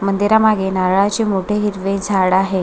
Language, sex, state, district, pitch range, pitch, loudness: Marathi, female, Maharashtra, Sindhudurg, 190-210 Hz, 195 Hz, -16 LUFS